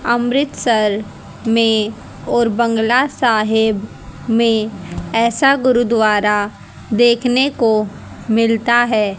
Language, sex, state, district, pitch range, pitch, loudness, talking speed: Hindi, female, Haryana, Rohtak, 215-240 Hz, 230 Hz, -15 LUFS, 80 wpm